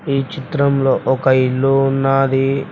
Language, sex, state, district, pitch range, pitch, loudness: Telugu, male, Telangana, Mahabubabad, 130-140 Hz, 135 Hz, -16 LUFS